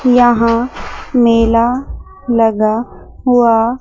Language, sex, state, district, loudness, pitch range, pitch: Hindi, female, Chandigarh, Chandigarh, -13 LUFS, 230-245 Hz, 235 Hz